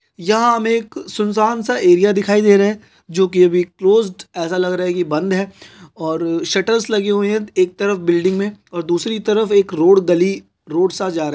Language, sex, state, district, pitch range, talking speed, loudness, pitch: Hindi, male, Chhattisgarh, Korba, 180-210 Hz, 215 wpm, -16 LUFS, 195 Hz